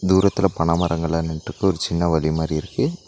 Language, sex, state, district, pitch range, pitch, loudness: Tamil, male, Tamil Nadu, Nilgiris, 80-95 Hz, 85 Hz, -21 LUFS